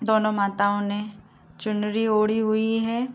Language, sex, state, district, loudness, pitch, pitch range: Hindi, female, Uttar Pradesh, Gorakhpur, -24 LUFS, 215 Hz, 205-225 Hz